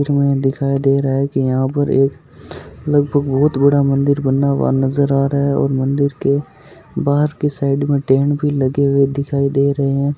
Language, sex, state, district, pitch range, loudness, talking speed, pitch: Marwari, male, Rajasthan, Nagaur, 135-140 Hz, -16 LUFS, 200 wpm, 140 Hz